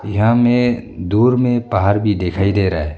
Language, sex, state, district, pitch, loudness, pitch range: Hindi, male, Arunachal Pradesh, Longding, 105 Hz, -16 LUFS, 95-120 Hz